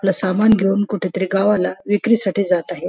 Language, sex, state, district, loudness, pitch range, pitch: Marathi, female, Maharashtra, Nagpur, -17 LUFS, 190-205 Hz, 195 Hz